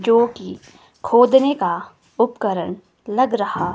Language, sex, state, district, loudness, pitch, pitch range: Hindi, female, Himachal Pradesh, Shimla, -18 LUFS, 235 Hz, 195-245 Hz